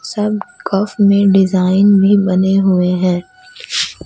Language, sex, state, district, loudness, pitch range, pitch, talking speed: Hindi, female, Bihar, Katihar, -13 LUFS, 185-210 Hz, 195 Hz, 120 wpm